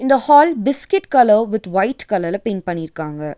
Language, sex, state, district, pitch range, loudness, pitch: Tamil, female, Tamil Nadu, Nilgiris, 180-275 Hz, -16 LUFS, 215 Hz